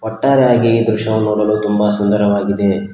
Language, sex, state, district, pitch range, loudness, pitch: Kannada, male, Karnataka, Koppal, 100-110 Hz, -14 LUFS, 105 Hz